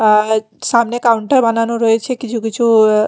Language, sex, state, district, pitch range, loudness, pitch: Bengali, female, Chhattisgarh, Raipur, 220-235 Hz, -14 LUFS, 230 Hz